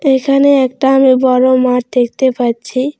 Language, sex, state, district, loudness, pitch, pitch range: Bengali, female, West Bengal, Alipurduar, -12 LUFS, 260 Hz, 250-270 Hz